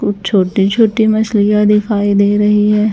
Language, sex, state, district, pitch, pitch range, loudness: Hindi, female, Chhattisgarh, Raipur, 210 Hz, 205-215 Hz, -12 LUFS